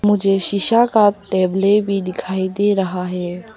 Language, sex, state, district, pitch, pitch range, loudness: Hindi, female, Arunachal Pradesh, Papum Pare, 195 Hz, 185-205 Hz, -17 LUFS